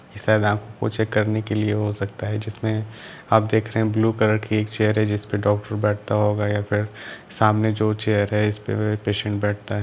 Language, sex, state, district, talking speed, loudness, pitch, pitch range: Hindi, male, Jharkhand, Sahebganj, 185 wpm, -22 LUFS, 105 Hz, 105-110 Hz